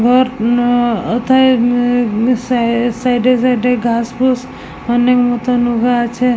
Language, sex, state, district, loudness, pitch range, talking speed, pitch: Bengali, female, West Bengal, Jalpaiguri, -14 LUFS, 240-250 Hz, 120 wpm, 245 Hz